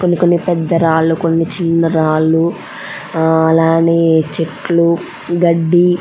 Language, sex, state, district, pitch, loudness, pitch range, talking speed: Telugu, female, Andhra Pradesh, Anantapur, 165 Hz, -13 LUFS, 160-170 Hz, 110 wpm